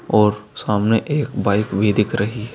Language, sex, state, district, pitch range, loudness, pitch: Hindi, male, Uttar Pradesh, Saharanpur, 105-110 Hz, -19 LUFS, 105 Hz